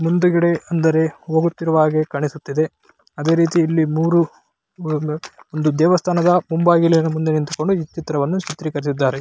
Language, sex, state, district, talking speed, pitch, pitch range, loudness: Kannada, male, Karnataka, Raichur, 125 wpm, 160 Hz, 155-170 Hz, -18 LUFS